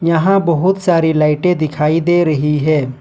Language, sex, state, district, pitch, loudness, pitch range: Hindi, male, Jharkhand, Ranchi, 160 Hz, -14 LUFS, 150-175 Hz